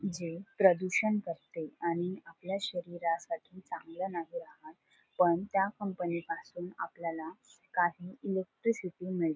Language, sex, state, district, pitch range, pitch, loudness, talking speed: Marathi, female, Maharashtra, Solapur, 170-195 Hz, 180 Hz, -34 LUFS, 110 wpm